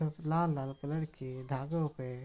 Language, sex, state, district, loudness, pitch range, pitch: Hindi, male, Bihar, Araria, -36 LUFS, 130-160 Hz, 145 Hz